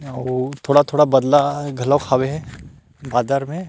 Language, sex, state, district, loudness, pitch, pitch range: Chhattisgarhi, male, Chhattisgarh, Rajnandgaon, -18 LUFS, 140 Hz, 130-145 Hz